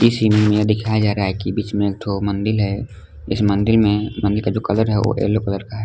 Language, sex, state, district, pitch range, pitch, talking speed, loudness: Hindi, male, Jharkhand, Palamu, 100-110 Hz, 105 Hz, 265 wpm, -18 LUFS